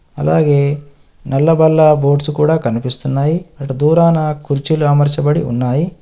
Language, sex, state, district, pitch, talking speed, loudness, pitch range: Telugu, male, Telangana, Adilabad, 150 Hz, 110 wpm, -14 LUFS, 140-160 Hz